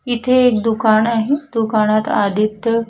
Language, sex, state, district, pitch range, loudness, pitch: Marathi, female, Maharashtra, Washim, 215-240 Hz, -16 LUFS, 225 Hz